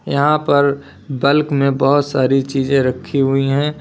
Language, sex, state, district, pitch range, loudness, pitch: Hindi, male, Uttar Pradesh, Lalitpur, 135-145 Hz, -16 LUFS, 140 Hz